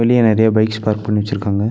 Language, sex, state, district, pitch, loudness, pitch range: Tamil, male, Tamil Nadu, Nilgiris, 110 Hz, -16 LUFS, 105-110 Hz